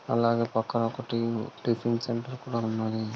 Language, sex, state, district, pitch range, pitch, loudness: Telugu, male, Telangana, Karimnagar, 115-120 Hz, 115 Hz, -29 LUFS